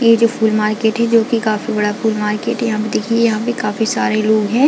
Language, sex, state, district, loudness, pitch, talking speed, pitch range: Hindi, female, Chhattisgarh, Bilaspur, -16 LUFS, 220 Hz, 270 wpm, 215-230 Hz